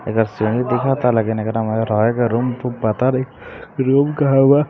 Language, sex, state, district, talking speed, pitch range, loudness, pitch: Maithili, male, Bihar, Samastipur, 130 wpm, 110-130 Hz, -18 LUFS, 125 Hz